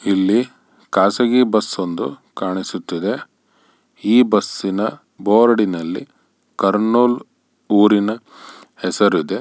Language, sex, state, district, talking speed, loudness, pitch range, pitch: Kannada, male, Karnataka, Bellary, 65 wpm, -18 LUFS, 95-115 Hz, 105 Hz